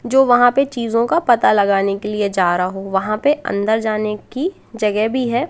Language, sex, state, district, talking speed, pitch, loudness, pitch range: Hindi, female, Madhya Pradesh, Katni, 220 wpm, 220 Hz, -17 LUFS, 200-245 Hz